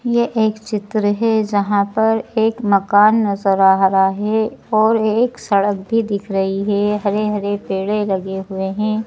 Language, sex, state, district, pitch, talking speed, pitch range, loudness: Hindi, female, Madhya Pradesh, Bhopal, 210 Hz, 160 wpm, 200-220 Hz, -17 LUFS